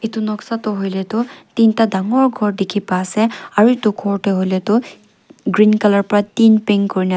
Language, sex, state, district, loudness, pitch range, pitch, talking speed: Nagamese, female, Nagaland, Kohima, -16 LUFS, 200-225 Hz, 210 Hz, 190 wpm